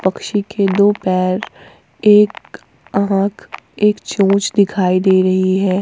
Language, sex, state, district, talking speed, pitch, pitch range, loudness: Hindi, female, Jharkhand, Ranchi, 135 wpm, 195 Hz, 185-205 Hz, -15 LUFS